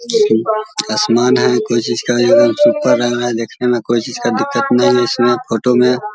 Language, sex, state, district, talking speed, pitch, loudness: Hindi, male, Bihar, Vaishali, 205 wpm, 120 Hz, -14 LUFS